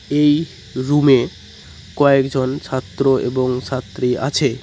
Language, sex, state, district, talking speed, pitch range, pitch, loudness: Bengali, male, West Bengal, Cooch Behar, 105 wpm, 125-140 Hz, 130 Hz, -18 LUFS